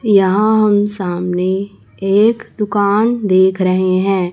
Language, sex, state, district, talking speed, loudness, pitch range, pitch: Hindi, male, Chhattisgarh, Raipur, 110 wpm, -14 LUFS, 185-210 Hz, 195 Hz